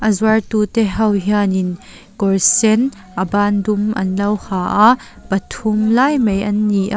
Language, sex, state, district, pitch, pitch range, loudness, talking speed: Mizo, female, Mizoram, Aizawl, 210 Hz, 195-220 Hz, -16 LUFS, 165 wpm